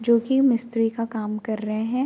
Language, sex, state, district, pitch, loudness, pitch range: Hindi, female, Uttar Pradesh, Varanasi, 230 Hz, -23 LUFS, 220-240 Hz